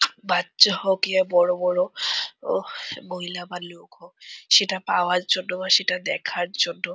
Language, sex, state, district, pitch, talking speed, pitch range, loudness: Bengali, female, West Bengal, Purulia, 180 Hz, 155 wpm, 180-190 Hz, -22 LUFS